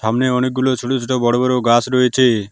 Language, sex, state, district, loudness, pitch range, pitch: Bengali, male, West Bengal, Alipurduar, -16 LUFS, 120-130 Hz, 125 Hz